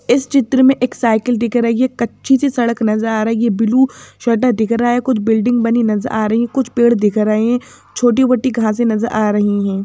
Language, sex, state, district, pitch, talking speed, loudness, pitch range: Hindi, female, Madhya Pradesh, Bhopal, 235 Hz, 240 wpm, -15 LUFS, 220-250 Hz